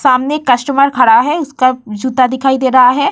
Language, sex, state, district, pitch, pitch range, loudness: Hindi, female, Bihar, Vaishali, 260 Hz, 255-280 Hz, -11 LUFS